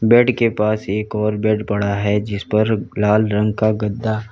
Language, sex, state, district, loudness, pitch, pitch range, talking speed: Hindi, male, Uttar Pradesh, Lalitpur, -18 LUFS, 105 Hz, 105-110 Hz, 195 wpm